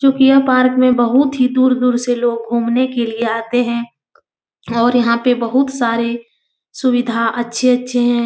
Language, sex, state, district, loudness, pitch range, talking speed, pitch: Hindi, female, Uttar Pradesh, Etah, -15 LUFS, 235-255 Hz, 160 wpm, 245 Hz